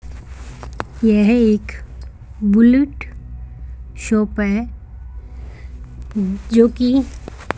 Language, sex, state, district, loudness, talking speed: Hindi, female, Rajasthan, Bikaner, -16 LUFS, 65 wpm